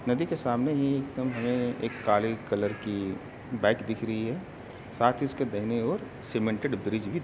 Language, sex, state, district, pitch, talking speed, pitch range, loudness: Hindi, male, Uttar Pradesh, Jalaun, 120 Hz, 190 wpm, 110-130 Hz, -29 LUFS